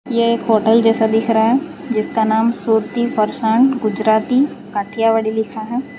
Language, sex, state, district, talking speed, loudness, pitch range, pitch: Hindi, female, Gujarat, Valsad, 150 wpm, -16 LUFS, 220-235 Hz, 225 Hz